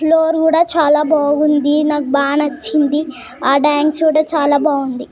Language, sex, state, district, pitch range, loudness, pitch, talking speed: Telugu, female, Telangana, Nalgonda, 285-310 Hz, -14 LUFS, 295 Hz, 150 wpm